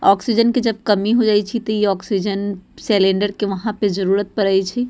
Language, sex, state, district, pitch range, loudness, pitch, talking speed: Bajjika, female, Bihar, Vaishali, 195-225 Hz, -18 LUFS, 205 Hz, 210 wpm